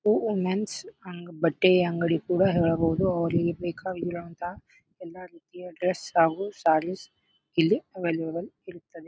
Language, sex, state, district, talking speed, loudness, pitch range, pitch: Kannada, male, Karnataka, Bijapur, 105 wpm, -26 LUFS, 165-185 Hz, 175 Hz